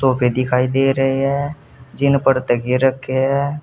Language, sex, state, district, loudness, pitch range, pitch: Hindi, male, Uttar Pradesh, Saharanpur, -17 LUFS, 130-140 Hz, 135 Hz